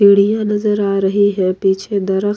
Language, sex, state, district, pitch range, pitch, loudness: Hindi, female, Bihar, Kishanganj, 195-205 Hz, 200 Hz, -15 LUFS